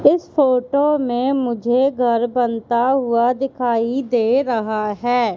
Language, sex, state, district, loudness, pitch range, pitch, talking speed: Hindi, female, Madhya Pradesh, Katni, -18 LUFS, 235-265 Hz, 245 Hz, 125 wpm